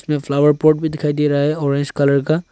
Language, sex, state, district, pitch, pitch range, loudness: Hindi, male, Arunachal Pradesh, Longding, 145 Hz, 140-155 Hz, -17 LUFS